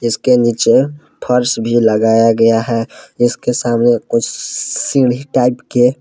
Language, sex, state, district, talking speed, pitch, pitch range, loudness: Hindi, male, Jharkhand, Palamu, 130 wpm, 120 Hz, 115-125 Hz, -14 LUFS